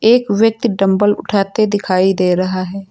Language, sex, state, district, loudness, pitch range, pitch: Hindi, female, Uttar Pradesh, Lucknow, -15 LUFS, 185-215 Hz, 200 Hz